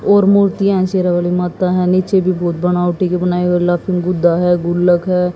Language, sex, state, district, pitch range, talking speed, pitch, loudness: Hindi, female, Haryana, Jhajjar, 175-185 Hz, 200 wpm, 180 Hz, -14 LUFS